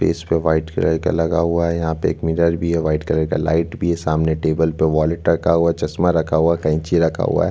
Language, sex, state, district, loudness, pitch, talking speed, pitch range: Hindi, male, Chhattisgarh, Bastar, -18 LUFS, 80 Hz, 255 wpm, 80-85 Hz